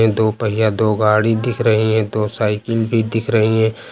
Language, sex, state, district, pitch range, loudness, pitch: Hindi, male, Uttar Pradesh, Lucknow, 110-115 Hz, -17 LUFS, 110 Hz